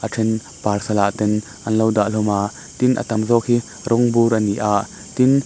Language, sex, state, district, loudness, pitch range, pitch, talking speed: Mizo, male, Mizoram, Aizawl, -19 LUFS, 105-120 Hz, 110 Hz, 230 wpm